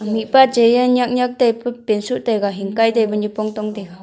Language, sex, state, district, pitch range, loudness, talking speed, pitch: Wancho, female, Arunachal Pradesh, Longding, 215-245 Hz, -17 LUFS, 210 wpm, 225 Hz